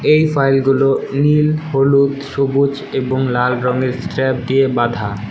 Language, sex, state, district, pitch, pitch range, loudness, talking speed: Bengali, male, West Bengal, Alipurduar, 135 Hz, 125-140 Hz, -16 LUFS, 125 wpm